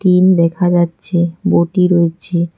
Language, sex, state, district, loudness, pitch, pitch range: Bengali, female, West Bengal, Cooch Behar, -14 LUFS, 175 Hz, 170-180 Hz